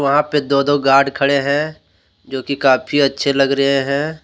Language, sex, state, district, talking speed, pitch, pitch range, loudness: Hindi, male, Jharkhand, Deoghar, 200 wpm, 140 Hz, 135-145 Hz, -16 LUFS